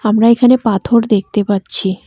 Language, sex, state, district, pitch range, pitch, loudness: Bengali, female, West Bengal, Cooch Behar, 200-235 Hz, 215 Hz, -13 LUFS